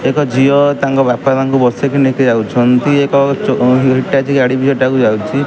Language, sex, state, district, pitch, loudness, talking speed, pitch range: Odia, male, Odisha, Khordha, 135 Hz, -12 LUFS, 175 wpm, 125-140 Hz